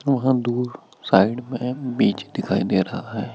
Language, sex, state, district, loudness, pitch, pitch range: Hindi, male, Chhattisgarh, Bilaspur, -22 LUFS, 125 Hz, 120-130 Hz